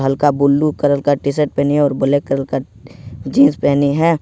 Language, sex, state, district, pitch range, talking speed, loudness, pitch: Hindi, male, Jharkhand, Ranchi, 135-145 Hz, 215 wpm, -15 LUFS, 140 Hz